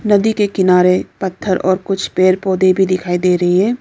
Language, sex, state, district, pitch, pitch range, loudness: Hindi, female, Arunachal Pradesh, Lower Dibang Valley, 185 Hz, 185-195 Hz, -14 LUFS